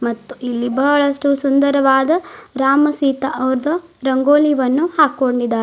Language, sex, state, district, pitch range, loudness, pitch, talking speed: Kannada, female, Karnataka, Bidar, 260-295 Hz, -16 LUFS, 275 Hz, 95 wpm